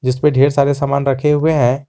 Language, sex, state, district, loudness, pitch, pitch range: Hindi, male, Jharkhand, Garhwa, -14 LUFS, 140 Hz, 135-150 Hz